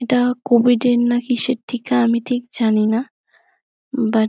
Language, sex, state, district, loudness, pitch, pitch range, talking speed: Bengali, female, West Bengal, Kolkata, -18 LUFS, 240 Hz, 230-250 Hz, 170 wpm